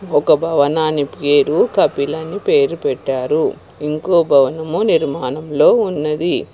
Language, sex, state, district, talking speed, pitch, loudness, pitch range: Telugu, female, Telangana, Hyderabad, 100 wpm, 155 Hz, -16 LUFS, 145-175 Hz